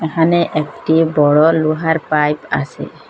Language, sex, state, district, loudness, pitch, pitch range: Bengali, female, Assam, Hailakandi, -15 LUFS, 160 Hz, 150-165 Hz